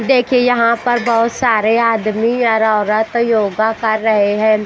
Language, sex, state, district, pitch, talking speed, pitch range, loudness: Hindi, female, Bihar, Patna, 225 Hz, 155 wpm, 215-235 Hz, -14 LUFS